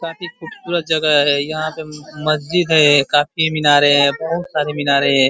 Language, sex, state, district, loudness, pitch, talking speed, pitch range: Hindi, male, Uttar Pradesh, Ghazipur, -15 LUFS, 155 Hz, 180 wpm, 145-160 Hz